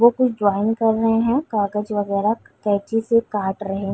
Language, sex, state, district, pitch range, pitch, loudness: Hindi, female, Bihar, Muzaffarpur, 200-230 Hz, 215 Hz, -20 LUFS